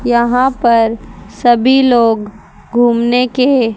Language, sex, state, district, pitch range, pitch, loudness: Hindi, female, Haryana, Rohtak, 230-250 Hz, 240 Hz, -12 LUFS